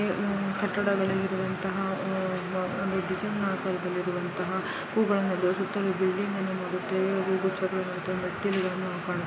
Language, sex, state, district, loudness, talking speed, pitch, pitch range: Kannada, female, Karnataka, Dharwad, -29 LUFS, 105 wpm, 190 Hz, 185-195 Hz